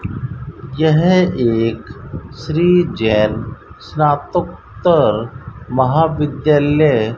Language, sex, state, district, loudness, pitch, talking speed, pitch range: Hindi, male, Rajasthan, Bikaner, -15 LUFS, 130 Hz, 60 wpm, 115-155 Hz